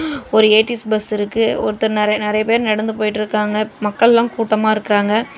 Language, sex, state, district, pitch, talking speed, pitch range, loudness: Tamil, female, Tamil Nadu, Namakkal, 215 Hz, 145 wpm, 210-225 Hz, -16 LUFS